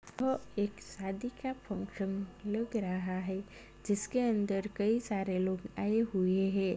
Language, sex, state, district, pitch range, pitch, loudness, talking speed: Hindi, male, Uttar Pradesh, Muzaffarnagar, 190-220 Hz, 200 Hz, -35 LUFS, 135 wpm